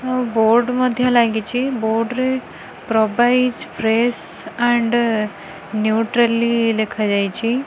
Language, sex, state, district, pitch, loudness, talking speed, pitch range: Odia, female, Odisha, Khordha, 235 Hz, -18 LUFS, 85 wpm, 220-245 Hz